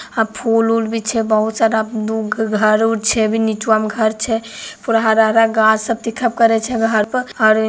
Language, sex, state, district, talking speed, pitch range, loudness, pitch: Maithili, female, Bihar, Begusarai, 155 wpm, 220-225 Hz, -16 LUFS, 225 Hz